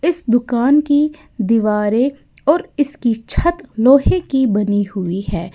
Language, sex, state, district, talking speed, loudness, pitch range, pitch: Hindi, female, Uttar Pradesh, Lalitpur, 130 wpm, -16 LUFS, 210-290 Hz, 245 Hz